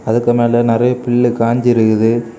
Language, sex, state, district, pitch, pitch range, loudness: Tamil, male, Tamil Nadu, Kanyakumari, 120 Hz, 115-120 Hz, -13 LUFS